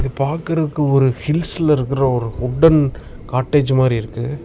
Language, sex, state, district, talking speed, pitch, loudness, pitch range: Tamil, male, Tamil Nadu, Namakkal, 120 wpm, 135 Hz, -17 LUFS, 125-150 Hz